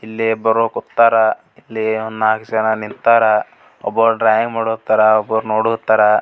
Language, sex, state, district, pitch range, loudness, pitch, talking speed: Kannada, male, Karnataka, Gulbarga, 110-115 Hz, -16 LUFS, 110 Hz, 135 wpm